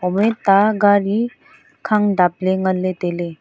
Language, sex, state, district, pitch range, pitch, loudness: Wancho, female, Arunachal Pradesh, Longding, 185-215 Hz, 200 Hz, -17 LUFS